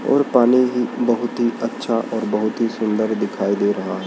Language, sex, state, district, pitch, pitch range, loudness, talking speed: Hindi, male, Madhya Pradesh, Dhar, 115 Hz, 110-125 Hz, -19 LUFS, 205 wpm